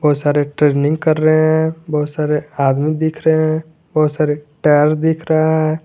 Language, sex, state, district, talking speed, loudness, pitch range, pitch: Hindi, male, Jharkhand, Garhwa, 185 wpm, -16 LUFS, 150-160 Hz, 155 Hz